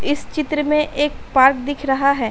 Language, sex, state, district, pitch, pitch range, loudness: Hindi, female, Uttar Pradesh, Hamirpur, 285 Hz, 270-300 Hz, -18 LUFS